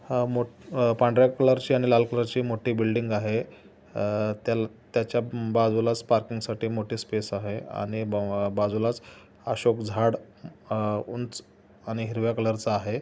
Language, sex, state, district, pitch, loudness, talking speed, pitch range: Marathi, male, Maharashtra, Solapur, 115 Hz, -26 LUFS, 150 wpm, 105-120 Hz